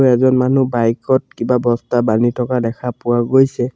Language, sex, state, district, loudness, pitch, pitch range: Assamese, male, Assam, Sonitpur, -16 LUFS, 125 Hz, 120-130 Hz